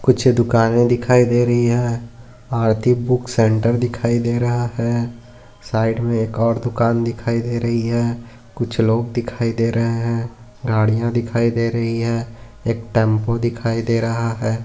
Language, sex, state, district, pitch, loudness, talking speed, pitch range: Hindi, male, Maharashtra, Aurangabad, 115 Hz, -19 LUFS, 160 wpm, 115-120 Hz